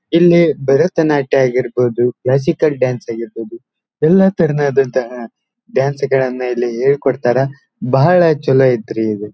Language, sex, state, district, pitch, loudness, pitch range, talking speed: Kannada, male, Karnataka, Dharwad, 135 Hz, -14 LUFS, 120-150 Hz, 95 wpm